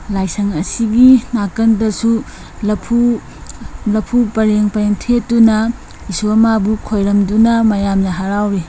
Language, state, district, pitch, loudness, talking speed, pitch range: Manipuri, Manipur, Imphal West, 215 Hz, -14 LUFS, 90 wpm, 205-230 Hz